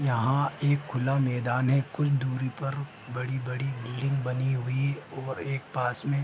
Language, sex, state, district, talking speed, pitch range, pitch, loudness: Hindi, male, Chhattisgarh, Bilaspur, 165 wpm, 125-140 Hz, 130 Hz, -29 LUFS